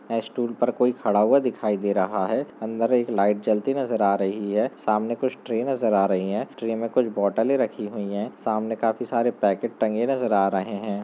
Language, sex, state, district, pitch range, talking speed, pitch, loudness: Hindi, male, West Bengal, Malda, 100-120 Hz, 215 wpm, 110 Hz, -24 LUFS